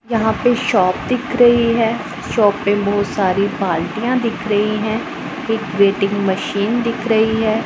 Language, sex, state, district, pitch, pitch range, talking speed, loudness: Hindi, male, Punjab, Pathankot, 220 Hz, 205-235 Hz, 155 wpm, -17 LUFS